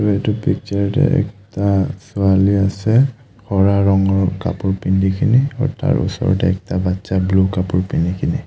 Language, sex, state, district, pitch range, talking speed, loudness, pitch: Assamese, male, Assam, Kamrup Metropolitan, 95-110 Hz, 115 wpm, -17 LUFS, 100 Hz